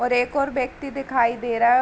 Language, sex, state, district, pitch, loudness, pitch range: Hindi, female, Uttar Pradesh, Varanasi, 245 Hz, -23 LUFS, 240-275 Hz